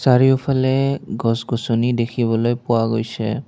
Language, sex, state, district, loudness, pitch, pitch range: Assamese, male, Assam, Kamrup Metropolitan, -19 LUFS, 120 Hz, 115-130 Hz